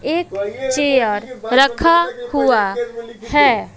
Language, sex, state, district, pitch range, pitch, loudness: Hindi, female, Bihar, West Champaran, 230-285 Hz, 255 Hz, -16 LUFS